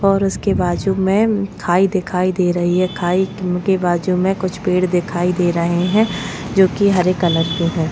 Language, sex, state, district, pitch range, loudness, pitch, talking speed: Hindi, female, Maharashtra, Chandrapur, 175-190 Hz, -17 LUFS, 185 Hz, 190 wpm